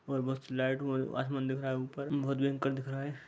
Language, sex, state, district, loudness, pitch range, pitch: Hindi, male, Chhattisgarh, Raigarh, -34 LUFS, 130-140 Hz, 135 Hz